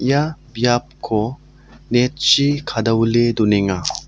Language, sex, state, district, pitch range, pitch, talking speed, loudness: Garo, male, Meghalaya, South Garo Hills, 115-140 Hz, 120 Hz, 90 wpm, -18 LUFS